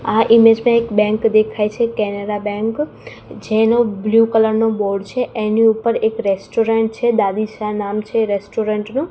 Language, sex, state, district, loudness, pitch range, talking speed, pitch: Gujarati, female, Gujarat, Gandhinagar, -17 LUFS, 210-225 Hz, 170 wpm, 220 Hz